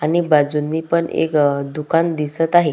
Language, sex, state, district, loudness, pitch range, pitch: Marathi, female, Maharashtra, Solapur, -18 LUFS, 150-165 Hz, 155 Hz